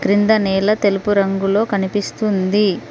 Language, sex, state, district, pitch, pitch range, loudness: Telugu, female, Telangana, Mahabubabad, 200 Hz, 195-210 Hz, -17 LUFS